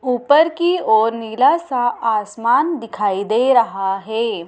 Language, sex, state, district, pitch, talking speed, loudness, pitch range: Hindi, female, Madhya Pradesh, Dhar, 230 Hz, 135 wpm, -17 LUFS, 215-270 Hz